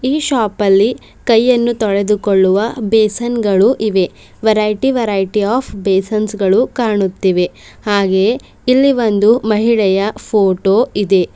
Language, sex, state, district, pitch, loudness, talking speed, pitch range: Kannada, female, Karnataka, Bidar, 210 Hz, -14 LUFS, 90 wpm, 195-235 Hz